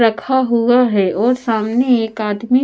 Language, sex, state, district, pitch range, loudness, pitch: Hindi, female, Bihar, Patna, 220-250 Hz, -15 LUFS, 235 Hz